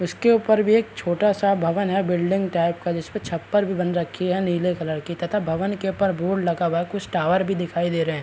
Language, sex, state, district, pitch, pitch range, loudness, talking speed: Hindi, male, Bihar, Araria, 180 Hz, 170-195 Hz, -22 LUFS, 255 wpm